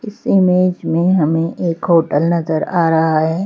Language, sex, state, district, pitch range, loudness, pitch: Hindi, female, Madhya Pradesh, Bhopal, 160-180 Hz, -15 LUFS, 170 Hz